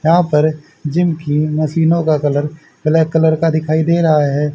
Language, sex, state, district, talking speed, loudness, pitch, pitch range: Hindi, male, Haryana, Rohtak, 185 wpm, -15 LUFS, 155 Hz, 150-165 Hz